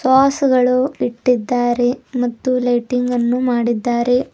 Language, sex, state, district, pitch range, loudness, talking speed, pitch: Kannada, female, Karnataka, Bidar, 240-255 Hz, -17 LUFS, 70 wpm, 250 Hz